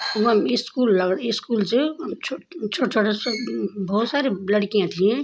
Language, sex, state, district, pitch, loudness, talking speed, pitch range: Garhwali, female, Uttarakhand, Tehri Garhwal, 220 Hz, -22 LUFS, 125 wpm, 205-250 Hz